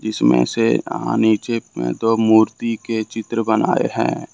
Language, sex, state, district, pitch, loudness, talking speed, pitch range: Hindi, male, Jharkhand, Ranchi, 110 Hz, -18 LUFS, 150 wpm, 110-115 Hz